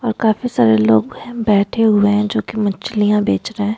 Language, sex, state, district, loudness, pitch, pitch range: Hindi, female, Goa, North and South Goa, -16 LUFS, 210 Hz, 205-225 Hz